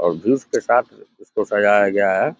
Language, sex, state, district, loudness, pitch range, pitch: Hindi, male, Uttar Pradesh, Deoria, -18 LUFS, 90-105 Hz, 100 Hz